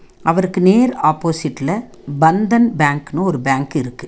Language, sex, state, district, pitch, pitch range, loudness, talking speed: Tamil, female, Tamil Nadu, Nilgiris, 160 Hz, 145-190 Hz, -16 LUFS, 115 wpm